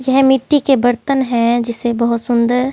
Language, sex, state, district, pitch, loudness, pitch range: Hindi, female, Haryana, Jhajjar, 245 Hz, -14 LUFS, 235-270 Hz